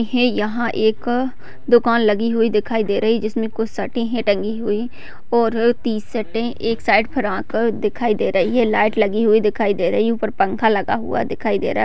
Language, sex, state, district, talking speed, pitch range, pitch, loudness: Hindi, female, Bihar, Madhepura, 200 wpm, 215-235 Hz, 225 Hz, -19 LUFS